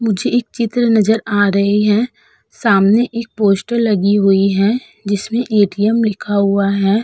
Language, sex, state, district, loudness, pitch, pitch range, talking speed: Hindi, female, Uttar Pradesh, Budaun, -15 LUFS, 210 Hz, 200-230 Hz, 155 wpm